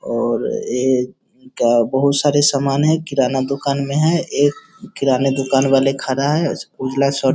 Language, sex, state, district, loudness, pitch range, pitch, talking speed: Hindi, male, Bihar, Sitamarhi, -17 LUFS, 135-145 Hz, 140 Hz, 155 wpm